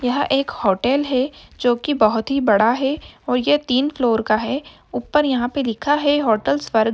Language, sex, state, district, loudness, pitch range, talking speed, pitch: Hindi, female, Bihar, Sitamarhi, -19 LUFS, 230-285 Hz, 200 wpm, 255 Hz